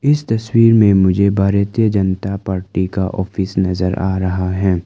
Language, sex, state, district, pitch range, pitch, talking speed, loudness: Hindi, male, Arunachal Pradesh, Lower Dibang Valley, 95-100 Hz, 95 Hz, 160 wpm, -16 LUFS